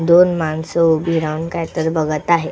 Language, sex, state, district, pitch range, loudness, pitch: Marathi, female, Maharashtra, Solapur, 160-170 Hz, -17 LUFS, 165 Hz